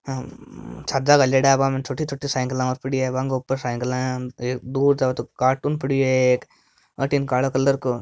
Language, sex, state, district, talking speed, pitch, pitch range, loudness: Marwari, male, Rajasthan, Nagaur, 170 wpm, 130 Hz, 130-135 Hz, -22 LUFS